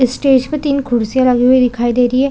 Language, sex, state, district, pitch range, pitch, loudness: Hindi, female, Chhattisgarh, Bilaspur, 245-270 Hz, 255 Hz, -13 LUFS